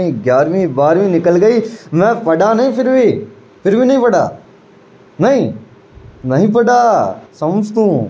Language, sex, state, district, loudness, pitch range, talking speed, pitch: Hindi, male, Uttar Pradesh, Varanasi, -13 LUFS, 170-240 Hz, 135 wpm, 205 Hz